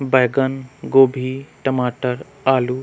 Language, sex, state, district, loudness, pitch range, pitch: Surgujia, male, Chhattisgarh, Sarguja, -19 LUFS, 125-135 Hz, 130 Hz